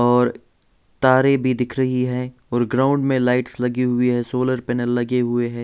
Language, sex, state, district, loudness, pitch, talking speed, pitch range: Hindi, male, Bihar, Patna, -20 LUFS, 125 Hz, 190 wpm, 120-130 Hz